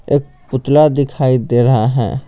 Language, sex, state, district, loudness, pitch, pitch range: Hindi, male, Bihar, Patna, -14 LUFS, 130 Hz, 130-145 Hz